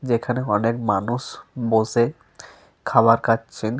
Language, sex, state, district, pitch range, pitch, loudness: Bengali, male, Jharkhand, Sahebganj, 110-120 Hz, 115 Hz, -21 LUFS